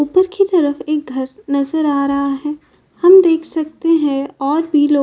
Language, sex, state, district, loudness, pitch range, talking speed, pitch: Hindi, female, Uttar Pradesh, Jyotiba Phule Nagar, -15 LUFS, 280-330 Hz, 200 wpm, 295 Hz